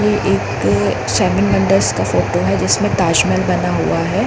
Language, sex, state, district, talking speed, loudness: Hindi, female, Chhattisgarh, Bilaspur, 180 wpm, -15 LUFS